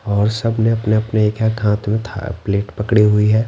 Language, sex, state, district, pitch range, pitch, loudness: Hindi, male, Bihar, West Champaran, 105-110 Hz, 105 Hz, -17 LUFS